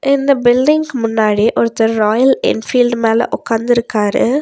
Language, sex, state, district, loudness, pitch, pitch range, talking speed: Tamil, female, Tamil Nadu, Nilgiris, -13 LUFS, 235 Hz, 225-265 Hz, 110 wpm